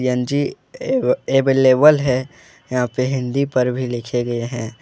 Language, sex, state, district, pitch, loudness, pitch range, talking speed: Hindi, male, Jharkhand, Deoghar, 130 Hz, -18 LUFS, 125-135 Hz, 160 wpm